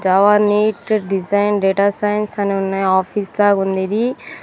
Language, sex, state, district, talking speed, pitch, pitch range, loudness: Telugu, female, Andhra Pradesh, Sri Satya Sai, 150 wpm, 205 Hz, 195-210 Hz, -17 LUFS